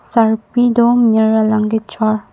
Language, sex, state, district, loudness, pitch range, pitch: Karbi, female, Assam, Karbi Anglong, -14 LUFS, 220-235 Hz, 220 Hz